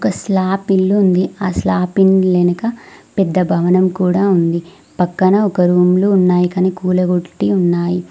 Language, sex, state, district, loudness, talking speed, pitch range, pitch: Telugu, female, Telangana, Mahabubabad, -14 LUFS, 140 wpm, 180-190 Hz, 185 Hz